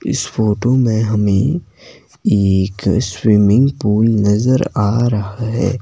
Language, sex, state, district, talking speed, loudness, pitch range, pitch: Hindi, male, Himachal Pradesh, Shimla, 115 wpm, -15 LUFS, 105-120 Hz, 110 Hz